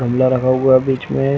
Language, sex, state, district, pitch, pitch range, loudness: Hindi, male, Chhattisgarh, Bilaspur, 130 Hz, 130-135 Hz, -15 LUFS